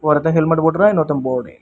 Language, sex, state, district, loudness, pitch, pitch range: Tamil, male, Tamil Nadu, Kanyakumari, -16 LUFS, 160 Hz, 145-165 Hz